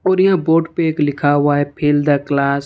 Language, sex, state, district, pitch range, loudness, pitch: Hindi, male, Jharkhand, Ranchi, 145-165 Hz, -16 LUFS, 145 Hz